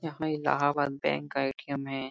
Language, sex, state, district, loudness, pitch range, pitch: Hindi, male, Bihar, Jahanabad, -30 LUFS, 135-145 Hz, 140 Hz